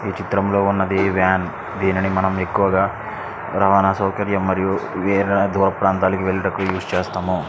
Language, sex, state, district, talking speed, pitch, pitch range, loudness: Telugu, male, Andhra Pradesh, Srikakulam, 135 wpm, 95 Hz, 95-100 Hz, -19 LUFS